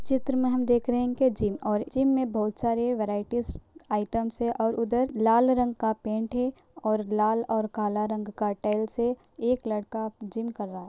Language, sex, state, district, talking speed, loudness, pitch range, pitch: Hindi, female, Uttar Pradesh, Ghazipur, 210 wpm, -27 LUFS, 215-245 Hz, 225 Hz